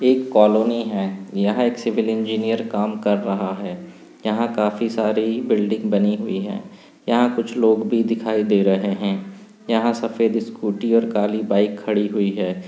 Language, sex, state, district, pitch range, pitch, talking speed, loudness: Hindi, male, Uttar Pradesh, Budaun, 105-115 Hz, 110 Hz, 165 wpm, -20 LUFS